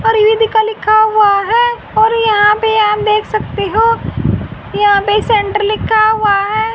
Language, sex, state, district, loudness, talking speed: Hindi, female, Haryana, Jhajjar, -12 LUFS, 170 wpm